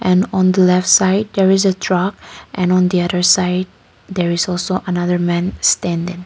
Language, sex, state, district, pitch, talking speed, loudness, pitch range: English, female, Nagaland, Kohima, 180 Hz, 190 wpm, -15 LUFS, 180-190 Hz